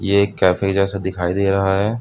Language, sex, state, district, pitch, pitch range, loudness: Hindi, male, Uttar Pradesh, Budaun, 100 Hz, 95-100 Hz, -18 LUFS